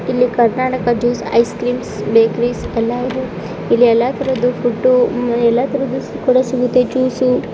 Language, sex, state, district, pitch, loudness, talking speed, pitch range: Kannada, female, Karnataka, Chamarajanagar, 245 Hz, -16 LUFS, 80 wpm, 235-255 Hz